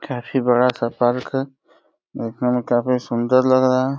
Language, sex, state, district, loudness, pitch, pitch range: Hindi, male, Uttar Pradesh, Deoria, -19 LUFS, 125 Hz, 120-130 Hz